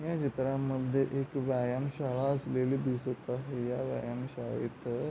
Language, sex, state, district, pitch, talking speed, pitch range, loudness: Marathi, male, Maharashtra, Pune, 130 Hz, 115 wpm, 125-135 Hz, -34 LUFS